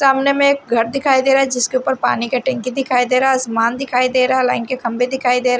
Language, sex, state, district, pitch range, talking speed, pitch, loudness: Hindi, female, Odisha, Sambalpur, 245-270 Hz, 300 wpm, 255 Hz, -16 LUFS